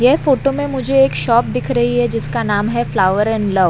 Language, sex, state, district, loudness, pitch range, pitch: Hindi, female, Maharashtra, Mumbai Suburban, -16 LUFS, 185-265 Hz, 220 Hz